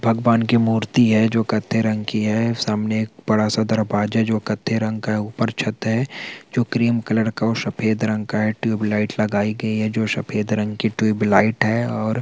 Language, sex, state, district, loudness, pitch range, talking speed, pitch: Hindi, male, Chhattisgarh, Balrampur, -20 LUFS, 105-115 Hz, 210 wpm, 110 Hz